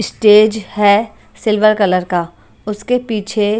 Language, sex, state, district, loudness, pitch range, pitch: Hindi, female, Maharashtra, Washim, -14 LUFS, 205-215 Hz, 210 Hz